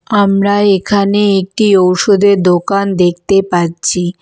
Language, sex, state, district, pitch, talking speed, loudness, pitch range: Bengali, female, West Bengal, Alipurduar, 195 Hz, 100 wpm, -11 LUFS, 180-200 Hz